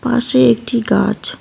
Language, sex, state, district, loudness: Bengali, female, West Bengal, Cooch Behar, -14 LUFS